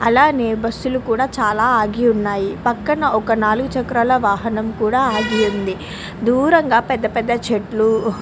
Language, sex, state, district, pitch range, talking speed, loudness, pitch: Telugu, female, Andhra Pradesh, Krishna, 215-250 Hz, 75 wpm, -17 LUFS, 230 Hz